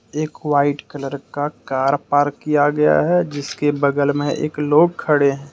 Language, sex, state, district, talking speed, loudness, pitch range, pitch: Hindi, male, Jharkhand, Deoghar, 175 wpm, -18 LUFS, 140-150 Hz, 145 Hz